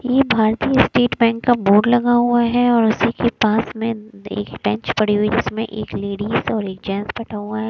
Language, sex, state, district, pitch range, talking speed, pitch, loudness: Hindi, female, Punjab, Kapurthala, 210-240 Hz, 220 wpm, 220 Hz, -18 LUFS